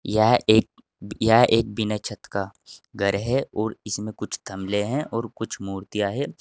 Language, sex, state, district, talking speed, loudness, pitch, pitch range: Hindi, male, Uttar Pradesh, Saharanpur, 170 wpm, -24 LUFS, 105 Hz, 100-115 Hz